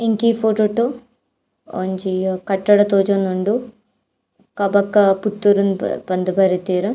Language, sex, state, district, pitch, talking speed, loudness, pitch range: Tulu, female, Karnataka, Dakshina Kannada, 200 Hz, 85 wpm, -18 LUFS, 190-220 Hz